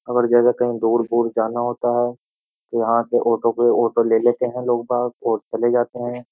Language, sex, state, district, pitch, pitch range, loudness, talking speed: Hindi, male, Uttar Pradesh, Jyotiba Phule Nagar, 120 Hz, 115-120 Hz, -19 LUFS, 210 wpm